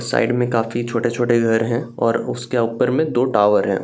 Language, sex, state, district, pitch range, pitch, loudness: Hindi, male, Bihar, Saharsa, 115-120 Hz, 120 Hz, -19 LUFS